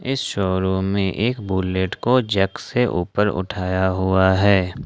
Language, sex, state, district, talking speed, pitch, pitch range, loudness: Hindi, male, Jharkhand, Ranchi, 150 wpm, 95 Hz, 95-105 Hz, -20 LUFS